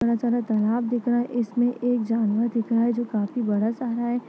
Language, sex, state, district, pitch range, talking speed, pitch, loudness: Hindi, female, Chhattisgarh, Bastar, 225-240 Hz, 235 wpm, 235 Hz, -24 LUFS